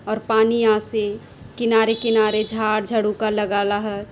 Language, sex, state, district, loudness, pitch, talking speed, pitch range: Halbi, female, Chhattisgarh, Bastar, -20 LUFS, 215 Hz, 130 wpm, 210-225 Hz